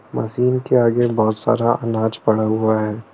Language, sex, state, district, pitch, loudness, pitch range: Hindi, male, Arunachal Pradesh, Lower Dibang Valley, 110 Hz, -18 LUFS, 110-120 Hz